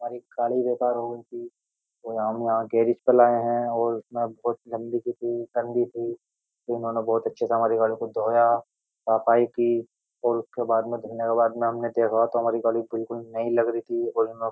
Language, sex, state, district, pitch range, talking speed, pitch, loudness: Hindi, male, Uttar Pradesh, Jyotiba Phule Nagar, 115-120 Hz, 215 wpm, 115 Hz, -25 LUFS